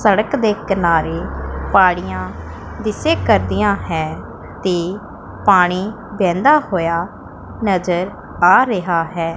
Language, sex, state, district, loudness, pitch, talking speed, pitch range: Punjabi, female, Punjab, Pathankot, -17 LUFS, 180 Hz, 95 wpm, 165-210 Hz